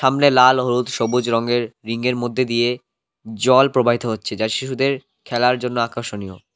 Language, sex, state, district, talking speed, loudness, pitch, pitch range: Bengali, male, West Bengal, Cooch Behar, 145 wpm, -19 LUFS, 120 Hz, 115-130 Hz